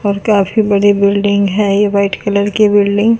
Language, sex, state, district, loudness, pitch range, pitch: Hindi, female, Chandigarh, Chandigarh, -12 LUFS, 200-210 Hz, 205 Hz